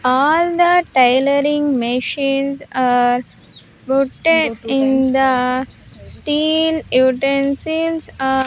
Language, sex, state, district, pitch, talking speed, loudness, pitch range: English, female, Andhra Pradesh, Sri Satya Sai, 275 Hz, 80 wpm, -16 LUFS, 255-300 Hz